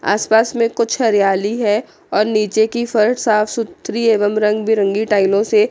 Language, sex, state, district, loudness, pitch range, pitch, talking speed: Hindi, female, Chandigarh, Chandigarh, -16 LUFS, 210-230 Hz, 215 Hz, 170 wpm